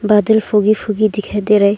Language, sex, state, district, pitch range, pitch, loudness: Hindi, female, Arunachal Pradesh, Longding, 205-215 Hz, 210 Hz, -14 LUFS